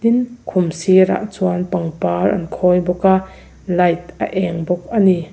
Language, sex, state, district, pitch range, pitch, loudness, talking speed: Mizo, female, Mizoram, Aizawl, 175-190 Hz, 180 Hz, -17 LUFS, 155 wpm